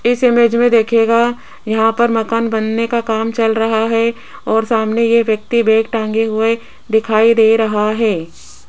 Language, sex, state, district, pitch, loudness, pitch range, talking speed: Hindi, female, Rajasthan, Jaipur, 225 Hz, -14 LUFS, 220-230 Hz, 165 wpm